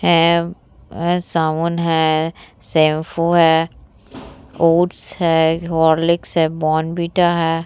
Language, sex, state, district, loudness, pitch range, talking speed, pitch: Hindi, female, Bihar, Vaishali, -17 LUFS, 160-170 Hz, 85 wpm, 165 Hz